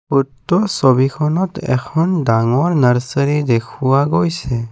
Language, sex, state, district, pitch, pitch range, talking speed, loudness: Assamese, male, Assam, Kamrup Metropolitan, 140 Hz, 130-165 Hz, 90 wpm, -16 LUFS